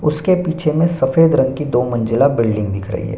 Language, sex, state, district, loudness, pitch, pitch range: Hindi, male, Bihar, Bhagalpur, -16 LUFS, 140 Hz, 115-165 Hz